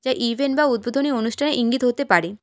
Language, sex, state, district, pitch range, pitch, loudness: Bengali, female, West Bengal, Alipurduar, 235-280 Hz, 250 Hz, -20 LUFS